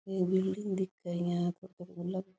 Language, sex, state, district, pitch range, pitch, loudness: Rajasthani, female, Rajasthan, Churu, 175-190 Hz, 185 Hz, -34 LUFS